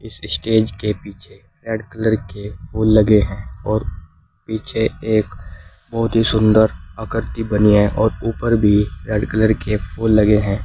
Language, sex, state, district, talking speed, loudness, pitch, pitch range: Hindi, male, Uttar Pradesh, Saharanpur, 160 wpm, -18 LUFS, 105 Hz, 100-110 Hz